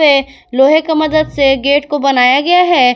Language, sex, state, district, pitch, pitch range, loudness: Hindi, female, Jharkhand, Garhwa, 285 Hz, 270-310 Hz, -11 LUFS